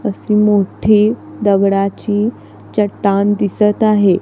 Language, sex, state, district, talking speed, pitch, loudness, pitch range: Marathi, female, Maharashtra, Gondia, 85 wpm, 205 Hz, -14 LUFS, 200-210 Hz